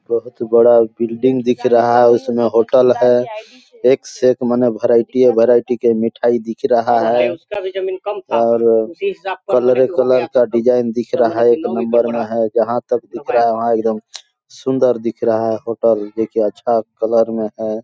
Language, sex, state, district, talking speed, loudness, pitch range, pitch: Hindi, male, Chhattisgarh, Balrampur, 170 wpm, -15 LUFS, 115-125 Hz, 120 Hz